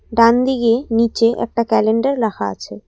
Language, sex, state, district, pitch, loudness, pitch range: Bengali, female, Assam, Kamrup Metropolitan, 230 Hz, -16 LUFS, 220-235 Hz